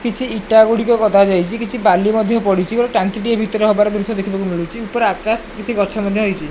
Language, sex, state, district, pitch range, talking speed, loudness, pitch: Odia, male, Odisha, Malkangiri, 200-230 Hz, 210 wpm, -16 LUFS, 215 Hz